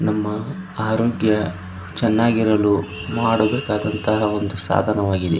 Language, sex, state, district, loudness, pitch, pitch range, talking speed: Kannada, male, Karnataka, Dharwad, -20 LUFS, 105 Hz, 95-110 Hz, 80 wpm